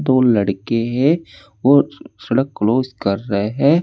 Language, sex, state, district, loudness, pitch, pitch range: Hindi, male, Uttar Pradesh, Saharanpur, -17 LUFS, 120 Hz, 105-135 Hz